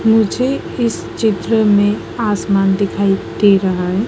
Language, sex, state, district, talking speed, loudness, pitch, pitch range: Hindi, female, Madhya Pradesh, Dhar, 130 wpm, -15 LUFS, 205 Hz, 195-225 Hz